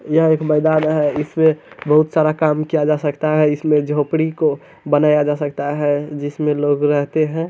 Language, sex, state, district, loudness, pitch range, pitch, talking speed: Hindi, male, Bihar, Bhagalpur, -17 LUFS, 145-155 Hz, 150 Hz, 185 wpm